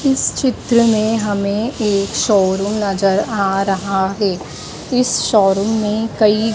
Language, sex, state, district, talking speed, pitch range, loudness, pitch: Hindi, female, Madhya Pradesh, Dhar, 145 wpm, 195-225 Hz, -16 LUFS, 210 Hz